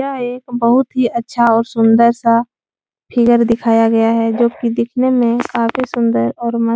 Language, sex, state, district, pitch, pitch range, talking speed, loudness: Hindi, female, Uttar Pradesh, Etah, 235 Hz, 230-245 Hz, 185 wpm, -14 LUFS